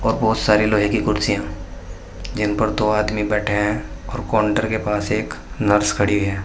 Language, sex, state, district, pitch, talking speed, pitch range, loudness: Hindi, male, Uttar Pradesh, Saharanpur, 105 Hz, 185 wpm, 100-110 Hz, -20 LUFS